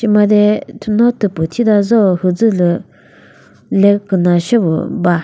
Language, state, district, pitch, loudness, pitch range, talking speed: Chakhesang, Nagaland, Dimapur, 205 Hz, -13 LUFS, 180-215 Hz, 115 wpm